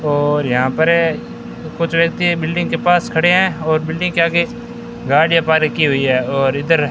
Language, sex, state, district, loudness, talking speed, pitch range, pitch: Hindi, male, Rajasthan, Bikaner, -15 LUFS, 180 wpm, 145-170 Hz, 160 Hz